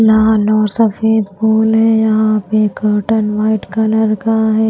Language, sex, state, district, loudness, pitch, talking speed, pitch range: Hindi, female, Maharashtra, Gondia, -13 LUFS, 220 Hz, 155 wpm, 215-220 Hz